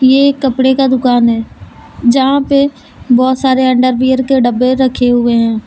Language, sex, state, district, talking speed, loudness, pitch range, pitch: Hindi, female, Jharkhand, Deoghar, 170 wpm, -11 LUFS, 245-265 Hz, 260 Hz